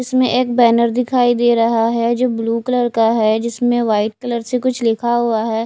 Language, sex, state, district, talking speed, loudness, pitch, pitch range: Hindi, female, Odisha, Nuapada, 210 wpm, -16 LUFS, 235 Hz, 230-245 Hz